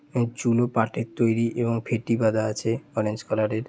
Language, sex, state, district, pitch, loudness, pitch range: Bengali, male, West Bengal, Jalpaiguri, 115 Hz, -25 LUFS, 110-120 Hz